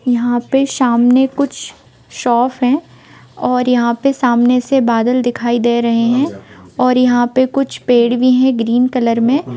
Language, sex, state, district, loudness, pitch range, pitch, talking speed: Hindi, female, Bihar, Sitamarhi, -14 LUFS, 240-260 Hz, 250 Hz, 170 wpm